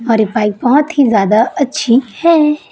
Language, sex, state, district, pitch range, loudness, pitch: Hindi, female, Chhattisgarh, Raipur, 220-295 Hz, -12 LUFS, 245 Hz